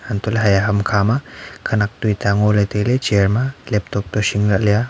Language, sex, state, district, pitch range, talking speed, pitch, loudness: Wancho, male, Arunachal Pradesh, Longding, 100-110 Hz, 185 wpm, 105 Hz, -18 LUFS